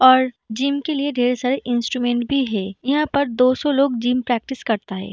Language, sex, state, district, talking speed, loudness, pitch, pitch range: Hindi, female, Bihar, Darbhanga, 210 wpm, -20 LUFS, 250 Hz, 240-275 Hz